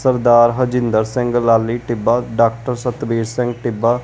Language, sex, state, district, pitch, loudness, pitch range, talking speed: Punjabi, male, Punjab, Kapurthala, 120 Hz, -16 LUFS, 115-125 Hz, 135 wpm